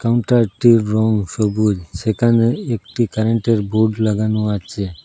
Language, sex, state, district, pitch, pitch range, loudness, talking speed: Bengali, male, Assam, Hailakandi, 110 Hz, 105-115 Hz, -17 LUFS, 120 wpm